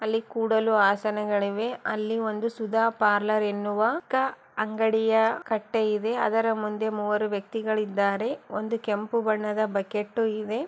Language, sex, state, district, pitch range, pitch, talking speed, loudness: Kannada, female, Karnataka, Chamarajanagar, 210-225 Hz, 215 Hz, 120 wpm, -26 LUFS